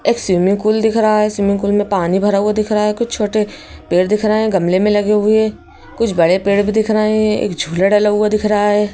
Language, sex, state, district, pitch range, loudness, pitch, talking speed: Hindi, female, Madhya Pradesh, Bhopal, 200-215 Hz, -15 LUFS, 210 Hz, 260 wpm